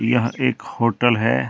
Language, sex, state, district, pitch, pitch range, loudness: Hindi, male, Jharkhand, Deoghar, 115 Hz, 105-120 Hz, -20 LUFS